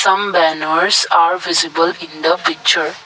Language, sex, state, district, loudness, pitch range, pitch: English, male, Assam, Kamrup Metropolitan, -14 LUFS, 165-180 Hz, 170 Hz